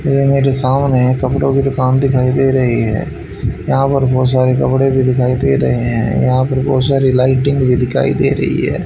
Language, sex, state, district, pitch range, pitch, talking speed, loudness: Hindi, male, Haryana, Rohtak, 130-135 Hz, 130 Hz, 205 wpm, -14 LUFS